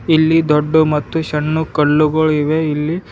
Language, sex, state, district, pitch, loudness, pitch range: Kannada, male, Karnataka, Bidar, 155 Hz, -15 LUFS, 150-160 Hz